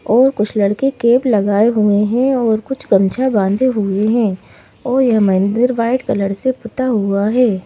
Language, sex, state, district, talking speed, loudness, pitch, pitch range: Hindi, female, Madhya Pradesh, Bhopal, 170 wpm, -15 LUFS, 225 Hz, 205-255 Hz